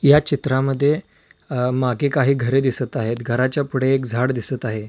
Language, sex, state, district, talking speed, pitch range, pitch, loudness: Marathi, male, Maharashtra, Solapur, 170 wpm, 125-140 Hz, 130 Hz, -20 LUFS